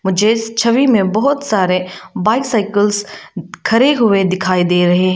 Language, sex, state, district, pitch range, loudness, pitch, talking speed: Hindi, female, Arunachal Pradesh, Lower Dibang Valley, 185-230 Hz, -14 LUFS, 205 Hz, 150 wpm